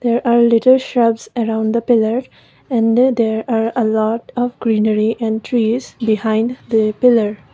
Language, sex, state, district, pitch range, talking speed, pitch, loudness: English, female, Assam, Kamrup Metropolitan, 220-240 Hz, 150 wpm, 230 Hz, -16 LUFS